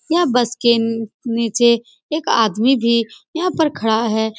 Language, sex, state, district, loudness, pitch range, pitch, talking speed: Hindi, female, Bihar, Saran, -17 LUFS, 225-275 Hz, 235 Hz, 165 wpm